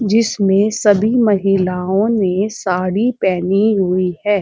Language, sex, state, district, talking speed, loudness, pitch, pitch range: Hindi, female, Uttar Pradesh, Muzaffarnagar, 110 wpm, -15 LUFS, 200 Hz, 185-215 Hz